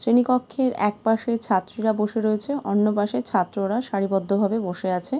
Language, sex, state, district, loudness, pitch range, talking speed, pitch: Bengali, female, West Bengal, Purulia, -23 LUFS, 200-235 Hz, 185 wpm, 215 Hz